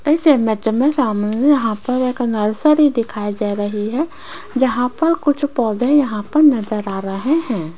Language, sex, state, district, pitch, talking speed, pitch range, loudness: Hindi, female, Rajasthan, Jaipur, 250 Hz, 170 wpm, 210-290 Hz, -17 LUFS